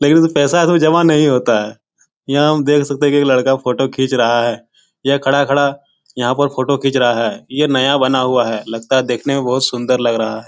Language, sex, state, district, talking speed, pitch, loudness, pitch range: Hindi, male, Uttar Pradesh, Etah, 235 wpm, 135 Hz, -14 LUFS, 125-145 Hz